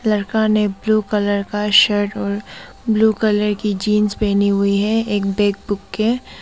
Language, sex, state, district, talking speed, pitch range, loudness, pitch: Hindi, female, Arunachal Pradesh, Papum Pare, 170 wpm, 200-215 Hz, -17 LUFS, 210 Hz